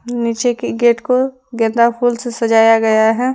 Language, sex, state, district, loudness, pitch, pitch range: Hindi, female, Jharkhand, Deoghar, -14 LUFS, 235 Hz, 225-245 Hz